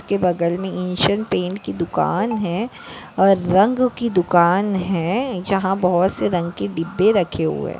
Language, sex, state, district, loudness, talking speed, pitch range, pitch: Hindi, female, Maharashtra, Chandrapur, -19 LUFS, 170 wpm, 175-200 Hz, 185 Hz